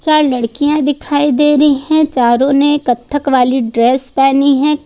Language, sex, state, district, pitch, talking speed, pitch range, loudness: Hindi, female, Jharkhand, Ranchi, 280 Hz, 160 wpm, 255-295 Hz, -12 LUFS